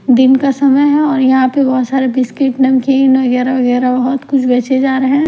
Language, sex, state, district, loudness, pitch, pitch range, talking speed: Hindi, female, Punjab, Pathankot, -12 LUFS, 265 Hz, 255-270 Hz, 225 wpm